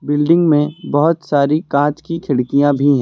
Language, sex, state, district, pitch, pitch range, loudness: Hindi, male, Uttar Pradesh, Lucknow, 145 Hz, 140-160 Hz, -15 LUFS